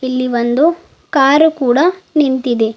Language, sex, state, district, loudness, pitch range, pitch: Kannada, female, Karnataka, Bidar, -13 LUFS, 250-315 Hz, 270 Hz